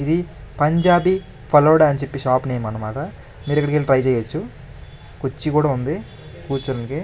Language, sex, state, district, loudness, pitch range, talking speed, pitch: Telugu, male, Andhra Pradesh, Krishna, -19 LUFS, 130-155 Hz, 155 wpm, 145 Hz